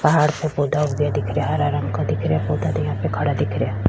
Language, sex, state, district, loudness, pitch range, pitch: Rajasthani, female, Rajasthan, Churu, -21 LUFS, 105-150 Hz, 145 Hz